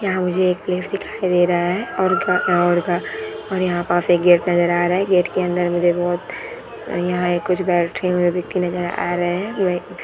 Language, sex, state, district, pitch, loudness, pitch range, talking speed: Hindi, female, Bihar, Madhepura, 180 Hz, -19 LUFS, 175-185 Hz, 210 wpm